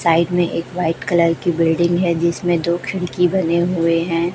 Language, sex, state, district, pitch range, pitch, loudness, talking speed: Hindi, male, Chhattisgarh, Raipur, 165-175 Hz, 170 Hz, -18 LUFS, 195 wpm